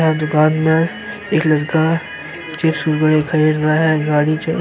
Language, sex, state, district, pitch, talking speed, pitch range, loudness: Hindi, male, Uttar Pradesh, Jyotiba Phule Nagar, 155 Hz, 155 wpm, 155-165 Hz, -16 LUFS